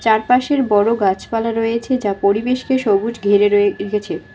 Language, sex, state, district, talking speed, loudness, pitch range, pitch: Bengali, female, West Bengal, Alipurduar, 140 wpm, -17 LUFS, 205-240 Hz, 220 Hz